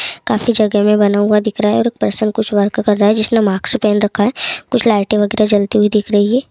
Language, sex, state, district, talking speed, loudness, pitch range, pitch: Hindi, male, West Bengal, Kolkata, 260 wpm, -14 LUFS, 205-220 Hz, 210 Hz